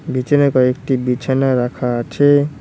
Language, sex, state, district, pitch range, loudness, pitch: Bengali, male, West Bengal, Cooch Behar, 125-145 Hz, -16 LUFS, 130 Hz